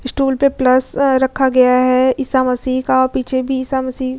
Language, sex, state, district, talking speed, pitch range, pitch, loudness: Hindi, female, Bihar, Vaishali, 200 wpm, 255-265 Hz, 260 Hz, -15 LUFS